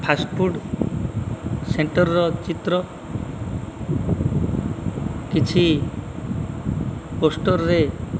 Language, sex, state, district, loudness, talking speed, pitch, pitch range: Odia, male, Odisha, Malkangiri, -23 LUFS, 65 wpm, 155 Hz, 110-175 Hz